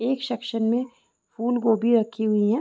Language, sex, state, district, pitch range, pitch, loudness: Hindi, female, Uttar Pradesh, Varanasi, 225-245 Hz, 230 Hz, -23 LUFS